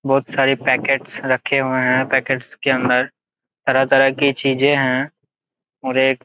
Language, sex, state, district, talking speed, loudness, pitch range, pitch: Hindi, male, Jharkhand, Jamtara, 155 wpm, -17 LUFS, 130-140 Hz, 135 Hz